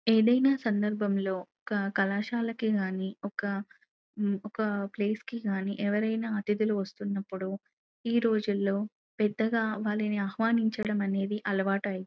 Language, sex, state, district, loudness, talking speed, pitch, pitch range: Telugu, female, Telangana, Nalgonda, -30 LUFS, 100 wpm, 210 Hz, 200-220 Hz